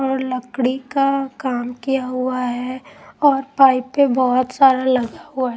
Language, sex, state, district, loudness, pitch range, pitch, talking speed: Hindi, female, Punjab, Pathankot, -18 LUFS, 250-270 Hz, 255 Hz, 170 wpm